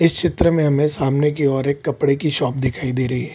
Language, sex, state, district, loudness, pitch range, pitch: Hindi, male, Bihar, Kishanganj, -19 LUFS, 135-155 Hz, 145 Hz